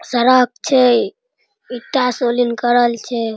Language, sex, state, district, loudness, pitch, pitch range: Maithili, female, Bihar, Araria, -15 LUFS, 245 Hz, 240-270 Hz